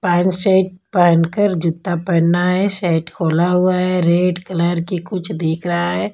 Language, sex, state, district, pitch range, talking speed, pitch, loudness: Hindi, female, Punjab, Kapurthala, 170-185 Hz, 175 wpm, 175 Hz, -17 LUFS